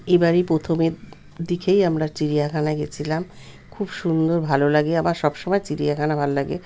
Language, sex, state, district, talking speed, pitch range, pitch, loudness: Bengali, male, West Bengal, Kolkata, 145 wpm, 150-175 Hz, 160 Hz, -21 LUFS